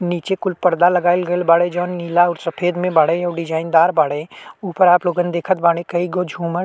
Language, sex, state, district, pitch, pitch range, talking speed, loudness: Bhojpuri, male, Uttar Pradesh, Ghazipur, 175 Hz, 170-180 Hz, 215 wpm, -17 LUFS